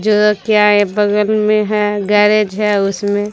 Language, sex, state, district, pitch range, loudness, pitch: Hindi, female, Bihar, Katihar, 205-210 Hz, -13 LUFS, 210 Hz